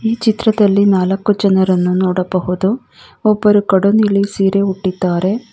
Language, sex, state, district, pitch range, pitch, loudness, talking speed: Kannada, female, Karnataka, Bangalore, 185-210 Hz, 200 Hz, -14 LUFS, 110 wpm